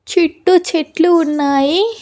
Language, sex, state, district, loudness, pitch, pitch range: Telugu, female, Andhra Pradesh, Annamaya, -14 LUFS, 335 Hz, 305-370 Hz